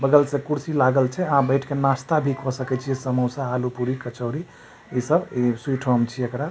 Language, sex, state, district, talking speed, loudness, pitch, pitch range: Maithili, male, Bihar, Supaul, 230 wpm, -23 LUFS, 135 Hz, 125-145 Hz